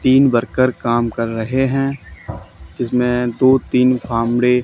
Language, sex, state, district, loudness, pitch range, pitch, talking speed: Hindi, male, Haryana, Charkhi Dadri, -17 LUFS, 115-130 Hz, 125 Hz, 130 wpm